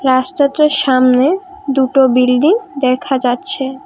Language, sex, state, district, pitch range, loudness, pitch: Bengali, female, Assam, Kamrup Metropolitan, 255-300 Hz, -13 LUFS, 265 Hz